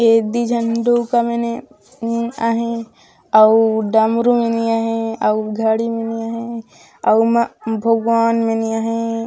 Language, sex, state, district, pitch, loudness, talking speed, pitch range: Chhattisgarhi, female, Chhattisgarh, Raigarh, 230 Hz, -17 LUFS, 115 wpm, 225-235 Hz